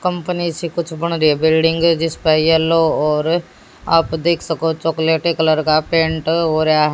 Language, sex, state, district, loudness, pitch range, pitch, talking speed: Hindi, female, Haryana, Jhajjar, -16 LUFS, 160-170 Hz, 165 Hz, 165 wpm